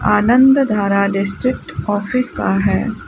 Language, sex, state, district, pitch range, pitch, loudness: Hindi, female, Rajasthan, Bikaner, 200-250 Hz, 205 Hz, -15 LUFS